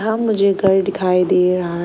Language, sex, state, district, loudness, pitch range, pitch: Hindi, female, Arunachal Pradesh, Lower Dibang Valley, -16 LUFS, 180-200 Hz, 190 Hz